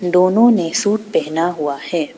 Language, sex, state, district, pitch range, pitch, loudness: Hindi, female, Arunachal Pradesh, Papum Pare, 160-205 Hz, 175 Hz, -16 LUFS